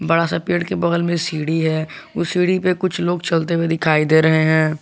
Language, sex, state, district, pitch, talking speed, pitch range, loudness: Hindi, male, Jharkhand, Garhwa, 165 Hz, 235 wpm, 160-175 Hz, -18 LUFS